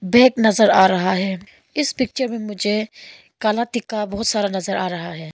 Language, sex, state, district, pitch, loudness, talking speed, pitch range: Hindi, female, Arunachal Pradesh, Longding, 210 Hz, -19 LUFS, 190 wpm, 190-235 Hz